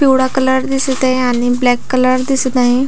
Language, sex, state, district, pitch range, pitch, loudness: Marathi, female, Maharashtra, Pune, 250-265 Hz, 260 Hz, -14 LUFS